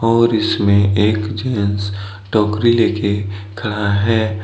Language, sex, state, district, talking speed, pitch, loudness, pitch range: Hindi, male, Jharkhand, Deoghar, 120 wpm, 105 Hz, -16 LUFS, 100-110 Hz